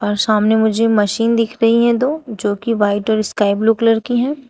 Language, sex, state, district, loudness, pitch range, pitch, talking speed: Hindi, female, Uttar Pradesh, Shamli, -15 LUFS, 210-230 Hz, 225 Hz, 225 wpm